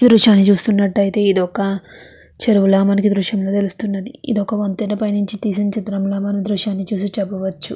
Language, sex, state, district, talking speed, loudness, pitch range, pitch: Telugu, female, Andhra Pradesh, Chittoor, 145 wpm, -17 LUFS, 195-210 Hz, 200 Hz